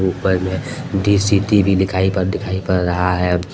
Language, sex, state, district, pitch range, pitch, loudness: Hindi, male, Jharkhand, Deoghar, 90-100 Hz, 95 Hz, -17 LUFS